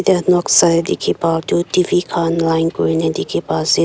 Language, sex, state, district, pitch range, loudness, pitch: Nagamese, female, Nagaland, Kohima, 160-175 Hz, -16 LUFS, 165 Hz